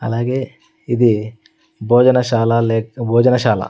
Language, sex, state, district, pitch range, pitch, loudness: Telugu, male, Andhra Pradesh, Sri Satya Sai, 115-125 Hz, 115 Hz, -15 LUFS